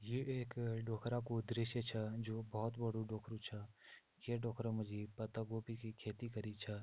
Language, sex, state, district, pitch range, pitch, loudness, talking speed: Hindi, male, Uttarakhand, Tehri Garhwal, 110-115 Hz, 115 Hz, -44 LUFS, 175 wpm